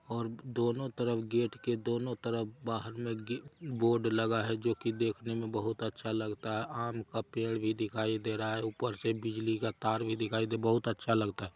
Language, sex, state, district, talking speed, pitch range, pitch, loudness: Hindi, male, Bihar, Araria, 200 wpm, 110-120 Hz, 115 Hz, -34 LUFS